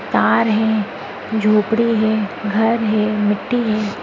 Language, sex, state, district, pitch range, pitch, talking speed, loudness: Hindi, female, Bihar, Madhepura, 210-220 Hz, 215 Hz, 120 wpm, -17 LUFS